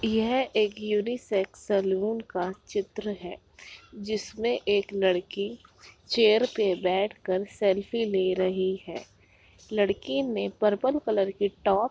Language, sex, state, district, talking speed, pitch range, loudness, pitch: Hindi, female, Bihar, Jahanabad, 125 wpm, 190-220 Hz, -27 LUFS, 205 Hz